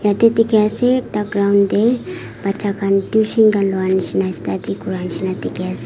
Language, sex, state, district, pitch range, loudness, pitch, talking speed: Nagamese, female, Nagaland, Kohima, 190-220 Hz, -17 LUFS, 200 Hz, 175 wpm